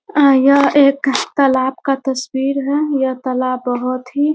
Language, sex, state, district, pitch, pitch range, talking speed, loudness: Hindi, female, Bihar, Muzaffarpur, 275 Hz, 260-280 Hz, 165 wpm, -15 LUFS